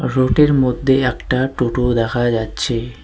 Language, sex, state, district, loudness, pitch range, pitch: Bengali, male, West Bengal, Cooch Behar, -17 LUFS, 120-130 Hz, 125 Hz